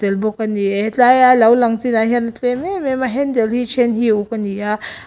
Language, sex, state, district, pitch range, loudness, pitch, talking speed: Mizo, female, Mizoram, Aizawl, 215-250 Hz, -16 LUFS, 235 Hz, 295 wpm